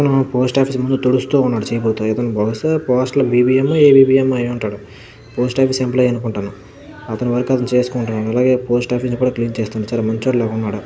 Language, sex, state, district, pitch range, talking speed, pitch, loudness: Telugu, male, Karnataka, Dharwad, 110-130 Hz, 170 wpm, 125 Hz, -16 LUFS